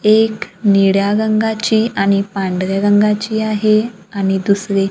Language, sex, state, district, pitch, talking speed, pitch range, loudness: Marathi, female, Maharashtra, Gondia, 205 Hz, 110 wpm, 195-215 Hz, -15 LUFS